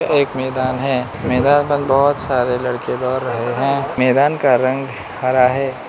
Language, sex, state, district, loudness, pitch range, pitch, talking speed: Hindi, male, Manipur, Imphal West, -17 LUFS, 125-135 Hz, 130 Hz, 165 wpm